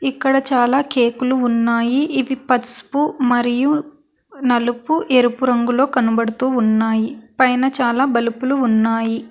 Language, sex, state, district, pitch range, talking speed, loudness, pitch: Telugu, female, Telangana, Hyderabad, 235-270 Hz, 105 wpm, -17 LUFS, 250 Hz